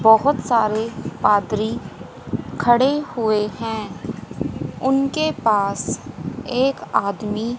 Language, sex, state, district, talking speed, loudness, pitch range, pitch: Hindi, female, Haryana, Jhajjar, 80 wpm, -21 LUFS, 215-260 Hz, 225 Hz